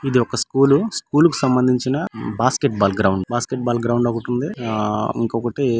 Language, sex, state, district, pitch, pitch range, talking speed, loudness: Telugu, male, Andhra Pradesh, Guntur, 125 Hz, 115-135 Hz, 165 wpm, -19 LUFS